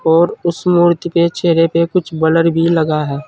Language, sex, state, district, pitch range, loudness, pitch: Hindi, male, Uttar Pradesh, Saharanpur, 160-175 Hz, -14 LUFS, 170 Hz